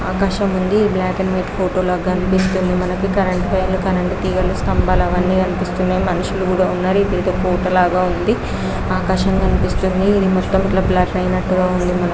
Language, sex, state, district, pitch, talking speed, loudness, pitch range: Telugu, female, Andhra Pradesh, Krishna, 185 Hz, 105 wpm, -17 LUFS, 180-190 Hz